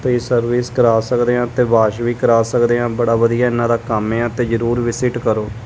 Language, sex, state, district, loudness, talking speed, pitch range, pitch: Punjabi, male, Punjab, Kapurthala, -16 LUFS, 220 wpm, 115-120 Hz, 120 Hz